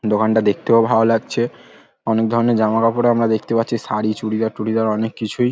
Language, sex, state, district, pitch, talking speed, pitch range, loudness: Bengali, male, West Bengal, Paschim Medinipur, 110 Hz, 165 wpm, 110-115 Hz, -18 LUFS